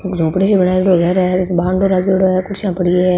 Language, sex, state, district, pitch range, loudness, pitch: Marwari, female, Rajasthan, Nagaur, 180-190 Hz, -14 LUFS, 185 Hz